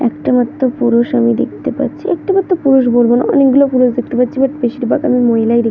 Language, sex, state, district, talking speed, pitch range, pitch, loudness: Bengali, female, West Bengal, North 24 Parganas, 220 wpm, 240-270 Hz, 250 Hz, -13 LUFS